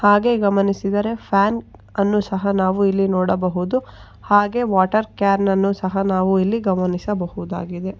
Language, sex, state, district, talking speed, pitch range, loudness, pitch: Kannada, female, Karnataka, Bangalore, 110 wpm, 190-205 Hz, -19 LUFS, 195 Hz